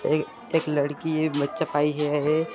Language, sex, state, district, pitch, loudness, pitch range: Hindi, male, Chhattisgarh, Sarguja, 150 Hz, -25 LUFS, 145-155 Hz